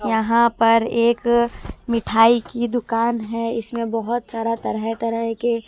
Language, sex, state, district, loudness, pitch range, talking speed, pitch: Hindi, female, Bihar, West Champaran, -20 LUFS, 225-235 Hz, 135 wpm, 230 Hz